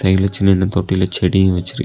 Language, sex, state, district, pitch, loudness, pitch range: Tamil, male, Tamil Nadu, Kanyakumari, 95 Hz, -16 LUFS, 90-95 Hz